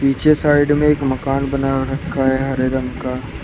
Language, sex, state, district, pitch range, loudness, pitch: Hindi, male, Uttar Pradesh, Shamli, 130-145 Hz, -17 LUFS, 135 Hz